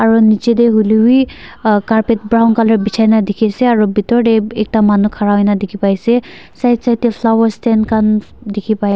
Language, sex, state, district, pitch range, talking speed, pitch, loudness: Nagamese, female, Nagaland, Dimapur, 210-230 Hz, 210 wpm, 220 Hz, -13 LUFS